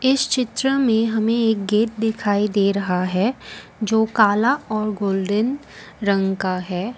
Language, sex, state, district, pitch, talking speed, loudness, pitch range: Hindi, female, Assam, Kamrup Metropolitan, 215 Hz, 145 wpm, -20 LUFS, 200-230 Hz